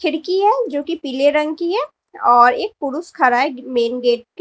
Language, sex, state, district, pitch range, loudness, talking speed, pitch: Hindi, female, Uttar Pradesh, Lalitpur, 250-345 Hz, -17 LUFS, 215 wpm, 295 Hz